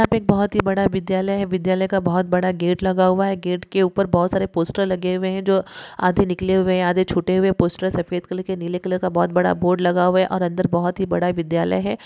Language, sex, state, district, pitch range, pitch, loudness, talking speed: Hindi, female, Bihar, Sitamarhi, 180-190 Hz, 185 Hz, -20 LUFS, 265 wpm